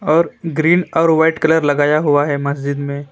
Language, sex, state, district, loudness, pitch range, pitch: Hindi, male, West Bengal, Alipurduar, -15 LUFS, 145-165 Hz, 155 Hz